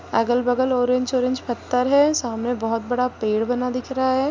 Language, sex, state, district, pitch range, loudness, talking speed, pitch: Hindi, female, Bihar, Madhepura, 240-255 Hz, -21 LUFS, 180 wpm, 250 Hz